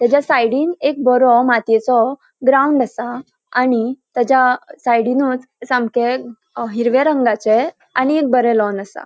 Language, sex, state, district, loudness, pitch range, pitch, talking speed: Konkani, female, Goa, North and South Goa, -16 LUFS, 235-265 Hz, 250 Hz, 125 wpm